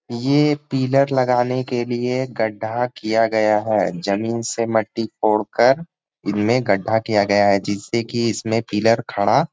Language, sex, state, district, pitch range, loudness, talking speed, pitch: Hindi, male, Jharkhand, Sahebganj, 105-125 Hz, -19 LUFS, 150 wpm, 115 Hz